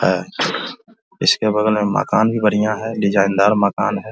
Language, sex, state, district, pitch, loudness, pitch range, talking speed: Hindi, male, Bihar, Vaishali, 110 Hz, -17 LUFS, 100-115 Hz, 160 wpm